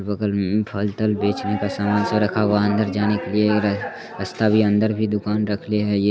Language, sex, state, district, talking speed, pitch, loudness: Hindi, male, Bihar, Saharsa, 245 wpm, 105 Hz, -21 LUFS